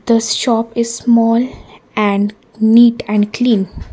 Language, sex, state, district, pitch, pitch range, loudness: English, female, Karnataka, Bangalore, 230 Hz, 210-235 Hz, -14 LUFS